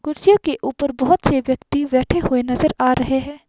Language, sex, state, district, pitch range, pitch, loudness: Hindi, female, Himachal Pradesh, Shimla, 255-300 Hz, 275 Hz, -18 LUFS